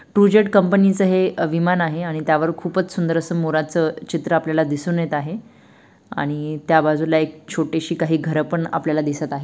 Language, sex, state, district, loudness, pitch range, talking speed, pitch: Marathi, female, Maharashtra, Dhule, -19 LUFS, 155-175 Hz, 180 wpm, 165 Hz